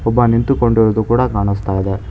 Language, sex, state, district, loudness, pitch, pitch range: Kannada, male, Karnataka, Bangalore, -15 LUFS, 110 Hz, 100-120 Hz